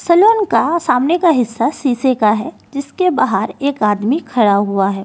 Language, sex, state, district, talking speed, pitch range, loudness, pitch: Hindi, female, Delhi, New Delhi, 165 wpm, 215-330 Hz, -15 LUFS, 260 Hz